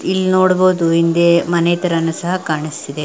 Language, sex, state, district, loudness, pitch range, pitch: Kannada, female, Karnataka, Belgaum, -15 LUFS, 165-185 Hz, 170 Hz